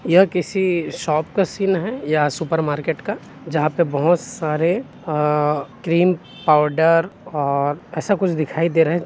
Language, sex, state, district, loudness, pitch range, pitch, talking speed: Hindi, male, Chhattisgarh, Bilaspur, -20 LUFS, 150-180 Hz, 165 Hz, 165 wpm